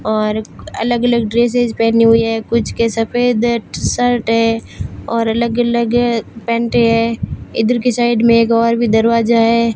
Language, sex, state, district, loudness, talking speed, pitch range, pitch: Hindi, female, Rajasthan, Barmer, -14 LUFS, 170 wpm, 230-240 Hz, 230 Hz